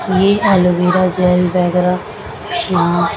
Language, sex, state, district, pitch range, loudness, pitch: Hindi, female, Punjab, Kapurthala, 180-190 Hz, -14 LUFS, 180 Hz